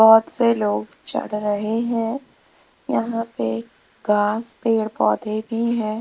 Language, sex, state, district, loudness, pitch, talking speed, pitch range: Hindi, female, Rajasthan, Jaipur, -22 LUFS, 220 Hz, 130 wpm, 210-230 Hz